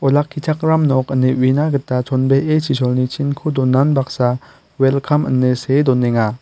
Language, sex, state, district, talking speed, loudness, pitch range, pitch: Garo, male, Meghalaya, West Garo Hills, 130 wpm, -16 LUFS, 130-145 Hz, 135 Hz